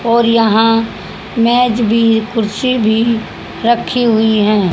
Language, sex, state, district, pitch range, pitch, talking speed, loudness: Hindi, female, Haryana, Rohtak, 220-235 Hz, 225 Hz, 115 wpm, -13 LUFS